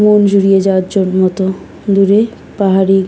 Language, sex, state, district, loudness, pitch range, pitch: Bengali, female, West Bengal, Kolkata, -12 LUFS, 190-200 Hz, 195 Hz